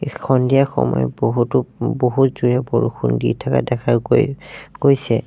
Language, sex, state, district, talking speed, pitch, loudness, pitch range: Assamese, male, Assam, Sonitpur, 125 wpm, 125 Hz, -18 LUFS, 115-135 Hz